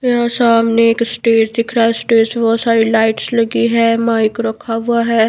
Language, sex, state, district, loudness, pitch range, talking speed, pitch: Hindi, female, Bihar, Patna, -14 LUFS, 225-235 Hz, 205 wpm, 230 Hz